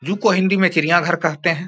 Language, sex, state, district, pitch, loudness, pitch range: Hindi, male, Bihar, Samastipur, 175 Hz, -17 LUFS, 165-190 Hz